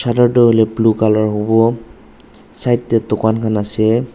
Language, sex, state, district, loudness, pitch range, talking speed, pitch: Nagamese, male, Nagaland, Dimapur, -14 LUFS, 110-120 Hz, 175 wpm, 115 Hz